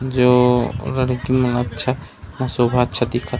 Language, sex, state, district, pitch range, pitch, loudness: Chhattisgarhi, male, Chhattisgarh, Raigarh, 120-130 Hz, 125 Hz, -18 LUFS